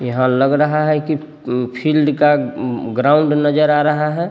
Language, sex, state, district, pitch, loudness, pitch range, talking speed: Bhojpuri, male, Bihar, Sitamarhi, 150 Hz, -16 LUFS, 130-150 Hz, 195 wpm